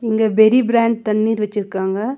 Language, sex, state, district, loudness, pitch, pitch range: Tamil, female, Tamil Nadu, Nilgiris, -16 LUFS, 220 Hz, 210-230 Hz